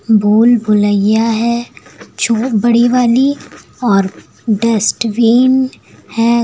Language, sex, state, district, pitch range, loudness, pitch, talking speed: Hindi, female, Uttar Pradesh, Lucknow, 215-240 Hz, -12 LUFS, 230 Hz, 85 wpm